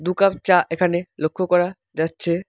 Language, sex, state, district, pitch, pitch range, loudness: Bengali, male, West Bengal, Alipurduar, 180 Hz, 170-185 Hz, -20 LUFS